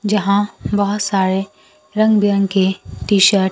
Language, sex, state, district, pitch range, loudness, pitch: Hindi, female, Bihar, Kaimur, 195-205 Hz, -16 LUFS, 200 Hz